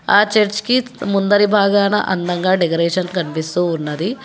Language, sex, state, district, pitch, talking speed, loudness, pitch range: Telugu, female, Telangana, Hyderabad, 195 Hz, 125 wpm, -16 LUFS, 175-210 Hz